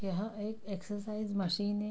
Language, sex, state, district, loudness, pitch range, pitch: Hindi, female, Bihar, Araria, -37 LUFS, 195-210 Hz, 205 Hz